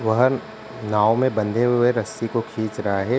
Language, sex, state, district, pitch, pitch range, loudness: Hindi, male, Uttar Pradesh, Ghazipur, 110 Hz, 110-120 Hz, -21 LUFS